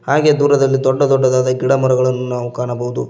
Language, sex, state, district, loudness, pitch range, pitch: Kannada, male, Karnataka, Koppal, -15 LUFS, 125-135 Hz, 130 Hz